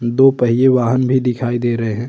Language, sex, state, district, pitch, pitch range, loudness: Hindi, male, Uttar Pradesh, Budaun, 125 Hz, 120-130 Hz, -15 LUFS